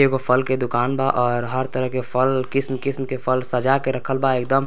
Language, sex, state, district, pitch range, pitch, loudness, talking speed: Hindi, male, Bihar, Gopalganj, 125-135 Hz, 130 Hz, -20 LUFS, 205 wpm